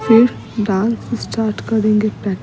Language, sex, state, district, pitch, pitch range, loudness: Hindi, female, Bihar, Patna, 215 Hz, 210-225 Hz, -17 LUFS